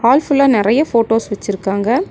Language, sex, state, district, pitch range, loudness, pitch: Tamil, female, Tamil Nadu, Nilgiris, 205-270 Hz, -15 LUFS, 230 Hz